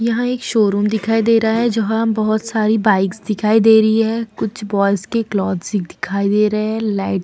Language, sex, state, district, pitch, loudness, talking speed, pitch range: Hindi, female, Bihar, Vaishali, 215 Hz, -17 LUFS, 200 wpm, 205-225 Hz